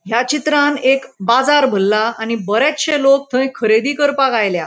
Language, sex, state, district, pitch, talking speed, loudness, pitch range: Konkani, female, Goa, North and South Goa, 260 Hz, 155 wpm, -15 LUFS, 220-285 Hz